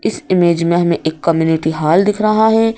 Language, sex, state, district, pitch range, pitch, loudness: Hindi, female, Madhya Pradesh, Bhopal, 160-210 Hz, 170 Hz, -14 LUFS